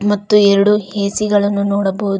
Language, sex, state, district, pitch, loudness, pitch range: Kannada, female, Karnataka, Koppal, 200 Hz, -14 LUFS, 200-205 Hz